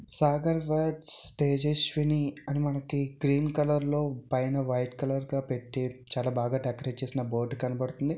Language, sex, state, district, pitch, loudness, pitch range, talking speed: Telugu, male, Andhra Pradesh, Visakhapatnam, 140 Hz, -29 LUFS, 130-150 Hz, 140 wpm